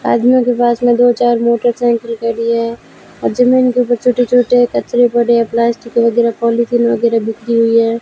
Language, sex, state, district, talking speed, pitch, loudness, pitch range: Hindi, female, Rajasthan, Bikaner, 185 wpm, 235 Hz, -13 LUFS, 230-245 Hz